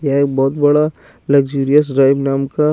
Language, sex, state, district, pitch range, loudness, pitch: Hindi, male, Chandigarh, Chandigarh, 135-150 Hz, -14 LUFS, 140 Hz